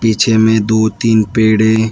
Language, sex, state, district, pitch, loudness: Hindi, male, Uttar Pradesh, Shamli, 110 Hz, -12 LUFS